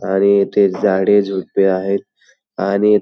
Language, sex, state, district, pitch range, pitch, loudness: Marathi, male, Maharashtra, Pune, 95-100 Hz, 100 Hz, -16 LUFS